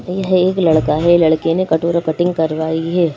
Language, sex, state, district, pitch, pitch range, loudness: Hindi, female, Madhya Pradesh, Bhopal, 165 Hz, 160-180 Hz, -15 LUFS